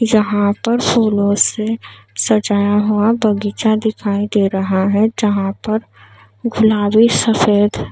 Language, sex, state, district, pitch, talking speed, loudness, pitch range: Hindi, female, Maharashtra, Mumbai Suburban, 210 Hz, 115 wpm, -15 LUFS, 200-220 Hz